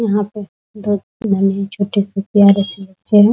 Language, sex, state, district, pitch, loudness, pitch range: Hindi, female, Bihar, Muzaffarpur, 200 Hz, -16 LUFS, 195-210 Hz